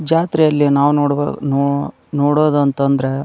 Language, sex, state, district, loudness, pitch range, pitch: Kannada, male, Karnataka, Dharwad, -16 LUFS, 140-150 Hz, 145 Hz